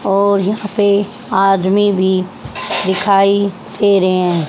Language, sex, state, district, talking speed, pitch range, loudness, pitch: Hindi, female, Haryana, Jhajjar, 120 wpm, 190-200 Hz, -14 LUFS, 195 Hz